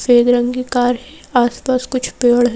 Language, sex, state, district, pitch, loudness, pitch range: Hindi, female, Madhya Pradesh, Bhopal, 245 Hz, -16 LUFS, 245-255 Hz